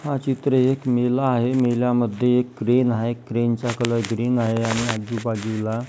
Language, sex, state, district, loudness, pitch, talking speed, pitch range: Marathi, female, Maharashtra, Gondia, -21 LUFS, 120 Hz, 165 wpm, 115-125 Hz